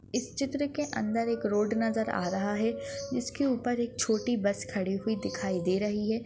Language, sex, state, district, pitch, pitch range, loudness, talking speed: Hindi, female, Maharashtra, Aurangabad, 225 Hz, 205-250 Hz, -30 LUFS, 200 wpm